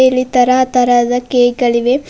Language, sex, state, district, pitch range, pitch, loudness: Kannada, female, Karnataka, Bidar, 245-255 Hz, 250 Hz, -12 LUFS